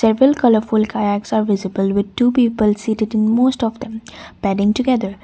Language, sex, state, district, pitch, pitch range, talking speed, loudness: English, female, Assam, Kamrup Metropolitan, 220 Hz, 205-240 Hz, 185 wpm, -17 LUFS